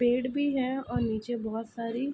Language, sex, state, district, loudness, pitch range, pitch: Hindi, female, Uttar Pradesh, Ghazipur, -31 LUFS, 230-265 Hz, 240 Hz